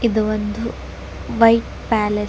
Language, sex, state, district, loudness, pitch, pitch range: Kannada, female, Karnataka, Dakshina Kannada, -19 LUFS, 220 Hz, 210-230 Hz